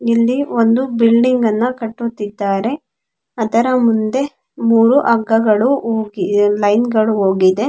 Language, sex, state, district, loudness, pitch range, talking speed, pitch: Kannada, female, Karnataka, Chamarajanagar, -15 LUFS, 215-245 Hz, 100 wpm, 230 Hz